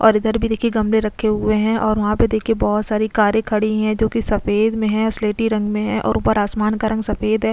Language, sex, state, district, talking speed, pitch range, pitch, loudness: Hindi, female, Chhattisgarh, Sukma, 265 wpm, 210-220 Hz, 215 Hz, -18 LUFS